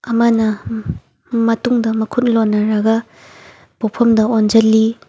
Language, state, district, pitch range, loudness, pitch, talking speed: Manipuri, Manipur, Imphal West, 220-230 Hz, -15 LUFS, 225 Hz, 80 wpm